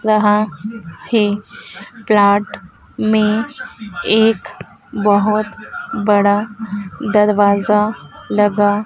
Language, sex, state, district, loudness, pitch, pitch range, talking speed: Hindi, female, Madhya Pradesh, Dhar, -16 LUFS, 210 Hz, 205-215 Hz, 60 wpm